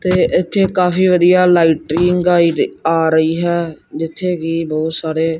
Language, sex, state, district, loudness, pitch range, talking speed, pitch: Punjabi, male, Punjab, Kapurthala, -15 LUFS, 160-180 Hz, 135 wpm, 170 Hz